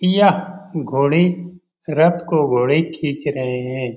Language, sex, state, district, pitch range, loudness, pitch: Hindi, male, Bihar, Jamui, 140-175 Hz, -18 LUFS, 160 Hz